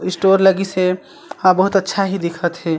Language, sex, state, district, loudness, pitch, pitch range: Chhattisgarhi, male, Chhattisgarh, Sarguja, -16 LUFS, 190 Hz, 180-195 Hz